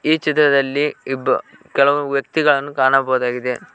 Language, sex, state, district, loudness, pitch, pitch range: Kannada, male, Karnataka, Koppal, -17 LUFS, 140 Hz, 130-145 Hz